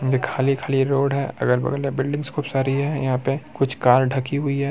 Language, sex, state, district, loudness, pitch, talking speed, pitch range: Hindi, male, Bihar, Muzaffarpur, -22 LUFS, 135 Hz, 205 wpm, 135-140 Hz